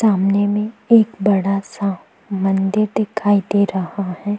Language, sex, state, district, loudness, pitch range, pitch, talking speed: Hindi, female, Chhattisgarh, Kabirdham, -18 LUFS, 195-215 Hz, 205 Hz, 150 wpm